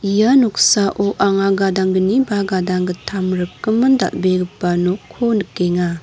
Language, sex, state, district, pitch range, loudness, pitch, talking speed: Garo, female, Meghalaya, North Garo Hills, 180-205 Hz, -16 LUFS, 195 Hz, 100 wpm